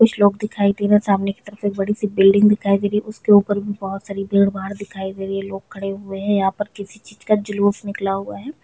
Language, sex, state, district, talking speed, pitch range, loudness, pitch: Hindi, female, Chhattisgarh, Bilaspur, 285 wpm, 195-205 Hz, -19 LUFS, 200 Hz